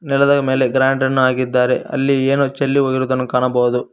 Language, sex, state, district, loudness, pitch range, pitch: Kannada, male, Karnataka, Koppal, -16 LUFS, 125-140 Hz, 130 Hz